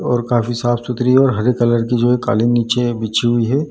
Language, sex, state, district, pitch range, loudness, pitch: Hindi, male, Bihar, Darbhanga, 120-125 Hz, -16 LUFS, 120 Hz